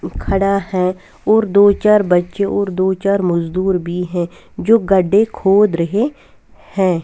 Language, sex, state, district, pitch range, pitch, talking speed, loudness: Hindi, female, Bihar, West Champaran, 180-205 Hz, 195 Hz, 145 wpm, -15 LUFS